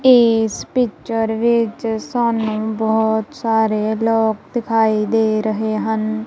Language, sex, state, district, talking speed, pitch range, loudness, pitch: Punjabi, female, Punjab, Kapurthala, 105 wpm, 220-230 Hz, -18 LUFS, 220 Hz